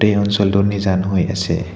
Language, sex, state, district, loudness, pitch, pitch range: Assamese, male, Assam, Hailakandi, -17 LUFS, 100 Hz, 95-100 Hz